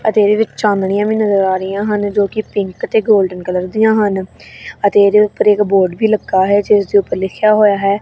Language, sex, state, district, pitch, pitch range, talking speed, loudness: Punjabi, female, Punjab, Kapurthala, 205 Hz, 195-210 Hz, 230 wpm, -14 LUFS